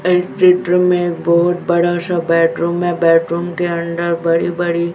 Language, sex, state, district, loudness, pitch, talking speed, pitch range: Hindi, female, Chhattisgarh, Raipur, -15 LUFS, 175 Hz, 155 wpm, 170-175 Hz